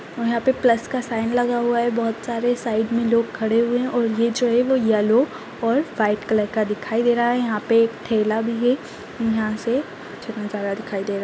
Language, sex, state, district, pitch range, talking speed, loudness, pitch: Kumaoni, female, Uttarakhand, Tehri Garhwal, 220-240 Hz, 235 wpm, -21 LUFS, 230 Hz